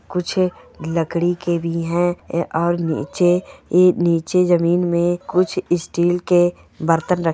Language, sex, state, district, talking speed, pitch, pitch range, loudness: Hindi, male, Goa, North and South Goa, 140 wpm, 175 Hz, 170-180 Hz, -19 LUFS